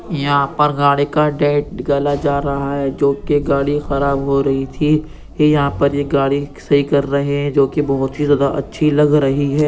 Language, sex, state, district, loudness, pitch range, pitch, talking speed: Hindi, male, Uttar Pradesh, Jyotiba Phule Nagar, -16 LUFS, 140-145 Hz, 140 Hz, 210 wpm